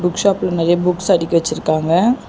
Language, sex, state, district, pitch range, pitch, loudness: Tamil, female, Tamil Nadu, Chennai, 170-185 Hz, 175 Hz, -16 LUFS